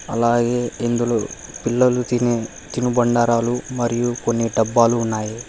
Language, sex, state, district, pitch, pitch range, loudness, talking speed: Telugu, male, Telangana, Hyderabad, 120 Hz, 115-120 Hz, -19 LUFS, 100 wpm